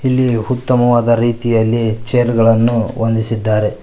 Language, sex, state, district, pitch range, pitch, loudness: Kannada, male, Karnataka, Koppal, 115-120 Hz, 115 Hz, -14 LUFS